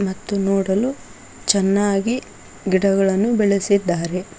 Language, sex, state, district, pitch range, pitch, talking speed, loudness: Kannada, female, Karnataka, Koppal, 190-205 Hz, 195 Hz, 70 wpm, -19 LUFS